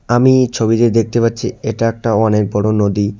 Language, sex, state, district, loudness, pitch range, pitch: Bengali, male, West Bengal, Cooch Behar, -14 LUFS, 105-120 Hz, 115 Hz